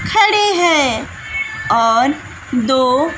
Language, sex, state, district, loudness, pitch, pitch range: Hindi, female, Bihar, West Champaran, -15 LUFS, 285 Hz, 255-350 Hz